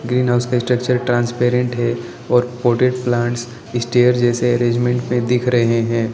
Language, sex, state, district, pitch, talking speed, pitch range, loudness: Hindi, male, Arunachal Pradesh, Lower Dibang Valley, 120 Hz, 145 wpm, 120-125 Hz, -17 LUFS